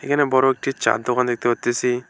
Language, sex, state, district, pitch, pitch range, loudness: Bengali, male, West Bengal, Alipurduar, 125 Hz, 120-135 Hz, -20 LUFS